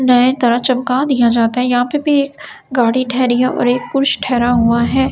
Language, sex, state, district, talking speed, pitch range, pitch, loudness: Hindi, female, Delhi, New Delhi, 235 wpm, 245-265 Hz, 250 Hz, -14 LUFS